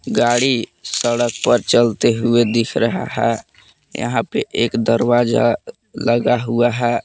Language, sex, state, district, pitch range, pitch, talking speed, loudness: Hindi, male, Jharkhand, Palamu, 115-120 Hz, 120 Hz, 125 wpm, -17 LUFS